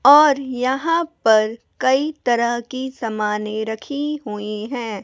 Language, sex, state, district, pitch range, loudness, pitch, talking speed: Hindi, female, Bihar, West Champaran, 220-275 Hz, -20 LUFS, 240 Hz, 120 wpm